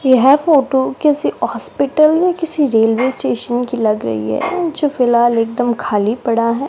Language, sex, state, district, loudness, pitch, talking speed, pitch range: Hindi, female, Rajasthan, Bikaner, -15 LUFS, 260 Hz, 160 wpm, 230-295 Hz